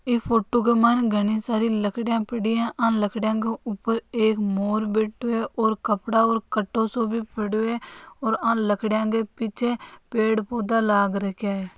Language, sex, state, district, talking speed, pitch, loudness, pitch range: Marwari, female, Rajasthan, Nagaur, 170 wpm, 220 Hz, -24 LUFS, 215-230 Hz